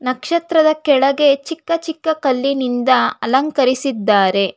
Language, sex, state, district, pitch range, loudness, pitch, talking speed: Kannada, female, Karnataka, Bangalore, 255-315 Hz, -16 LUFS, 275 Hz, 80 wpm